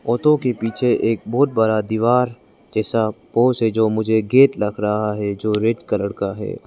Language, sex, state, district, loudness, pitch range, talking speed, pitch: Hindi, male, Arunachal Pradesh, Lower Dibang Valley, -19 LUFS, 105-120 Hz, 190 wpm, 110 Hz